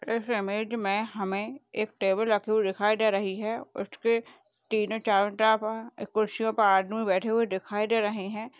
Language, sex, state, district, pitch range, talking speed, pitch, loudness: Hindi, female, Rajasthan, Nagaur, 200-225 Hz, 175 wpm, 215 Hz, -28 LUFS